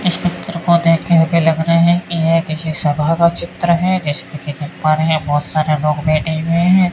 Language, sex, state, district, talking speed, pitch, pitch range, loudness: Hindi, male, Rajasthan, Bikaner, 235 wpm, 165 Hz, 155-170 Hz, -15 LUFS